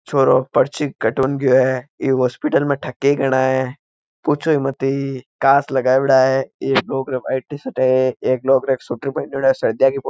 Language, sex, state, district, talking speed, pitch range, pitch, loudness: Marwari, male, Rajasthan, Nagaur, 190 wpm, 130-140 Hz, 135 Hz, -18 LUFS